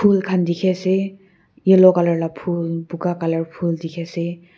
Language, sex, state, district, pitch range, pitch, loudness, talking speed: Nagamese, female, Nagaland, Kohima, 170-185 Hz, 175 Hz, -19 LUFS, 155 wpm